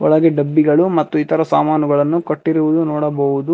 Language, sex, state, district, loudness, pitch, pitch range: Kannada, male, Karnataka, Bangalore, -15 LUFS, 155 Hz, 150-160 Hz